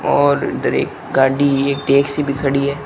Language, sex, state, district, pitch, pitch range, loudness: Hindi, male, Rajasthan, Bikaner, 140 Hz, 135-140 Hz, -16 LUFS